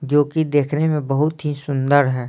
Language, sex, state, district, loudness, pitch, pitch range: Hindi, male, Bihar, Patna, -19 LUFS, 145 Hz, 140-150 Hz